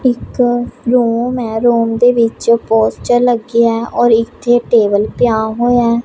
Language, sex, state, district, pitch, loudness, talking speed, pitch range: Punjabi, female, Punjab, Pathankot, 235 Hz, -13 LUFS, 130 wpm, 230-240 Hz